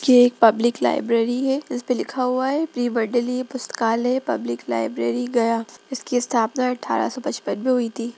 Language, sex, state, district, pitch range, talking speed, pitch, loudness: Hindi, female, Bihar, Gaya, 230-255 Hz, 170 wpm, 245 Hz, -22 LUFS